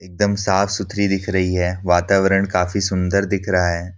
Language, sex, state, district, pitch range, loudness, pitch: Hindi, male, Bihar, Gopalganj, 90-100 Hz, -19 LUFS, 95 Hz